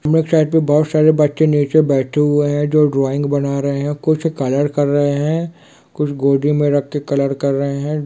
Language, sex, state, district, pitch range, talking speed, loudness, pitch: Hindi, male, Bihar, Kishanganj, 140-150 Hz, 225 wpm, -16 LUFS, 145 Hz